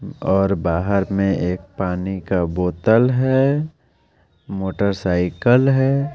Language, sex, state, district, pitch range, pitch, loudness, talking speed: Hindi, male, Bihar, West Champaran, 90-125 Hz, 95 Hz, -19 LUFS, 100 wpm